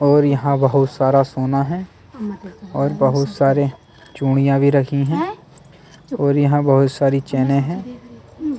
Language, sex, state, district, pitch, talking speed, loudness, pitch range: Hindi, male, Delhi, New Delhi, 140 Hz, 135 wpm, -17 LUFS, 135-160 Hz